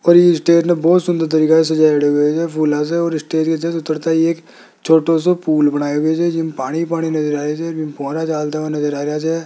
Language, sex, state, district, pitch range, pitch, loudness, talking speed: Hindi, male, Rajasthan, Jaipur, 150-165 Hz, 160 Hz, -16 LUFS, 205 wpm